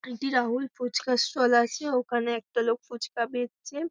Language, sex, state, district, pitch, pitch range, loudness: Bengali, female, West Bengal, Paschim Medinipur, 245 Hz, 235-260 Hz, -27 LUFS